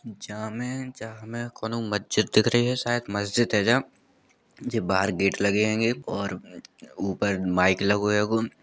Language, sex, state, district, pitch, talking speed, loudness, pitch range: Bundeli, male, Uttar Pradesh, Jalaun, 110 Hz, 145 wpm, -25 LUFS, 100-120 Hz